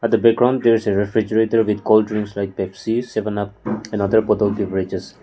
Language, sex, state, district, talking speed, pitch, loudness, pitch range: English, male, Nagaland, Kohima, 195 wpm, 105 Hz, -19 LUFS, 100-110 Hz